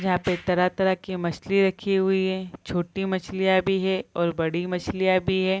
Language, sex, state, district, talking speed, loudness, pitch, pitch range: Hindi, female, Bihar, Bhagalpur, 170 wpm, -24 LUFS, 190 Hz, 180-190 Hz